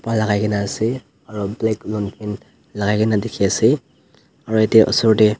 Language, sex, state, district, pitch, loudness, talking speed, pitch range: Nagamese, male, Nagaland, Dimapur, 110 Hz, -18 LUFS, 165 wpm, 105-110 Hz